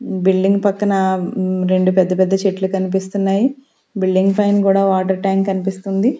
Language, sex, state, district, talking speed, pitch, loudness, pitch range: Telugu, female, Andhra Pradesh, Sri Satya Sai, 125 wpm, 195 Hz, -16 LUFS, 190-195 Hz